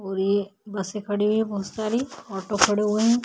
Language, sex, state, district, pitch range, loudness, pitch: Hindi, female, Bihar, Vaishali, 200-220 Hz, -24 LUFS, 210 Hz